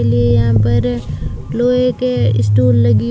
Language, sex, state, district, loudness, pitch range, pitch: Hindi, female, Rajasthan, Bikaner, -14 LUFS, 115-125 Hz, 120 Hz